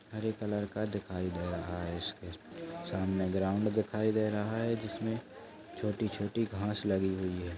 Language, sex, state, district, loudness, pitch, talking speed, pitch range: Hindi, male, Goa, North and South Goa, -34 LUFS, 105 Hz, 160 wpm, 95-110 Hz